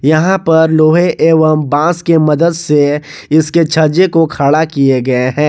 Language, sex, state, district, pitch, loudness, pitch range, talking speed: Hindi, male, Jharkhand, Garhwa, 155 Hz, -11 LUFS, 145-165 Hz, 165 wpm